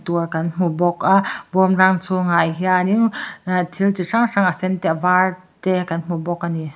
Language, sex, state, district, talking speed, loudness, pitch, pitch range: Mizo, male, Mizoram, Aizawl, 215 wpm, -19 LUFS, 185 Hz, 170-190 Hz